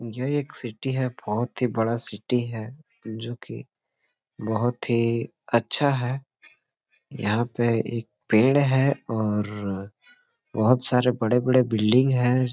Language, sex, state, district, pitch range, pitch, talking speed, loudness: Hindi, male, Jharkhand, Sahebganj, 110-130 Hz, 120 Hz, 125 wpm, -24 LUFS